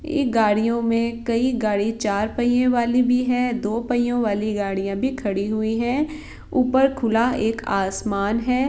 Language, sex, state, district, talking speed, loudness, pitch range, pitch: Hindi, female, Bihar, Saran, 165 wpm, -21 LUFS, 215-250 Hz, 235 Hz